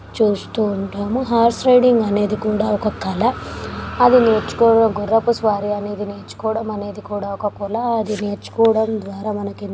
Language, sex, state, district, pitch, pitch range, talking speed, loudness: Telugu, female, Telangana, Nalgonda, 215 Hz, 205-225 Hz, 140 wpm, -18 LUFS